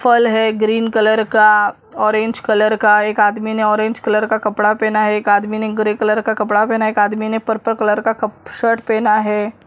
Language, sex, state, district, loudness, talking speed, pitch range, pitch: Hindi, female, Maharashtra, Mumbai Suburban, -15 LUFS, 215 wpm, 210-220 Hz, 215 Hz